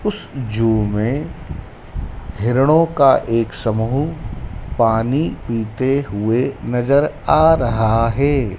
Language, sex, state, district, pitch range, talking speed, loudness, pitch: Hindi, male, Madhya Pradesh, Dhar, 110-140 Hz, 100 wpm, -17 LUFS, 120 Hz